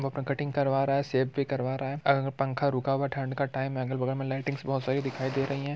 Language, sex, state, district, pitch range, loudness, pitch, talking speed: Hindi, male, Bihar, Muzaffarpur, 135-140 Hz, -29 LUFS, 135 Hz, 300 wpm